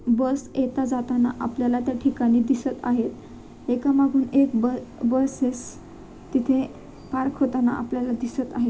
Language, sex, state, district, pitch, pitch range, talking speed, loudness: Marathi, female, Maharashtra, Sindhudurg, 255 Hz, 245-270 Hz, 115 wpm, -24 LUFS